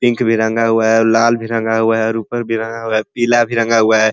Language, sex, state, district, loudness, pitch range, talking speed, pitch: Hindi, male, Uttar Pradesh, Ghazipur, -15 LUFS, 110-115 Hz, 320 wpm, 115 Hz